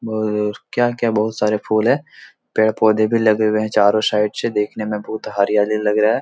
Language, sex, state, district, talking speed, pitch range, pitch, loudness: Hindi, male, Bihar, Jahanabad, 210 wpm, 105-110 Hz, 110 Hz, -18 LUFS